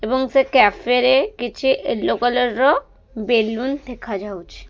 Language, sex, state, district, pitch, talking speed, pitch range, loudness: Odia, female, Odisha, Khordha, 245 Hz, 115 wpm, 220-260 Hz, -18 LUFS